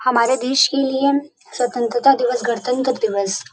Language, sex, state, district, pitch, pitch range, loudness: Hindi, female, Uttar Pradesh, Varanasi, 250 Hz, 240-270 Hz, -18 LUFS